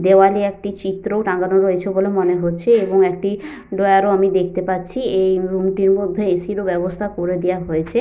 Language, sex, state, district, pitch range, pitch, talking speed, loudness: Bengali, female, Jharkhand, Sahebganj, 185-200 Hz, 190 Hz, 195 wpm, -18 LUFS